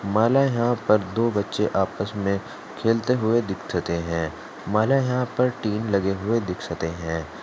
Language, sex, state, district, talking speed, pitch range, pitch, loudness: Hindi, male, Maharashtra, Aurangabad, 135 wpm, 90-115 Hz, 105 Hz, -24 LUFS